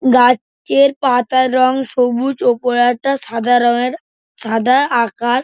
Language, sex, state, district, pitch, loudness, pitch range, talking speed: Bengali, male, West Bengal, Dakshin Dinajpur, 250 Hz, -14 LUFS, 245-265 Hz, 130 wpm